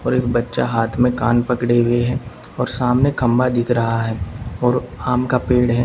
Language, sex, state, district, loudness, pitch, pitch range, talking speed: Hindi, male, Uttar Pradesh, Saharanpur, -18 LUFS, 120 Hz, 120-125 Hz, 205 wpm